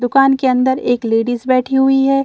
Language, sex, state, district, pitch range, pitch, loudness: Hindi, female, Bihar, Saran, 245-270 Hz, 260 Hz, -14 LUFS